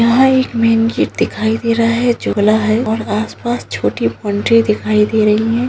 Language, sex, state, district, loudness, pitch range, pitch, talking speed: Hindi, female, Bihar, Gaya, -14 LUFS, 205-230 Hz, 220 Hz, 190 wpm